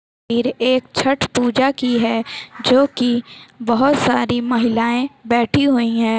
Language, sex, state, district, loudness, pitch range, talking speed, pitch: Hindi, female, Chhattisgarh, Sukma, -17 LUFS, 235-260 Hz, 135 wpm, 245 Hz